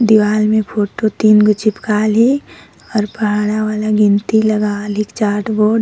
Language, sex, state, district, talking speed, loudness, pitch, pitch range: Sadri, female, Chhattisgarh, Jashpur, 165 wpm, -14 LUFS, 215 Hz, 210-215 Hz